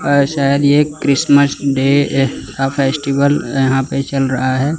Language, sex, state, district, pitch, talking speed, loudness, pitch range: Hindi, male, Chandigarh, Chandigarh, 140 Hz, 150 wpm, -14 LUFS, 135-145 Hz